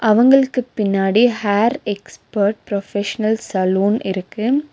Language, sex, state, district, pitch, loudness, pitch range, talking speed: Tamil, female, Tamil Nadu, Nilgiris, 215 Hz, -18 LUFS, 200-240 Hz, 90 wpm